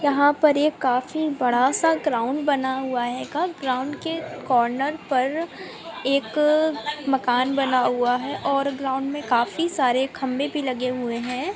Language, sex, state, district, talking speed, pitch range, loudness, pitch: Hindi, female, Andhra Pradesh, Chittoor, 150 wpm, 255-300 Hz, -23 LUFS, 275 Hz